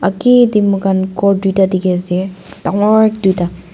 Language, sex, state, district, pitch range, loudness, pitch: Nagamese, female, Nagaland, Dimapur, 185-200 Hz, -13 LUFS, 195 Hz